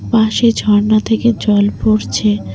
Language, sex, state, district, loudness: Bengali, female, West Bengal, Cooch Behar, -13 LUFS